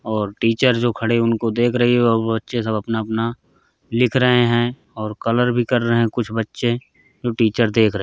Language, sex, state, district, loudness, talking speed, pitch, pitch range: Hindi, male, Bihar, Gopalganj, -19 LUFS, 210 wpm, 115 Hz, 115-120 Hz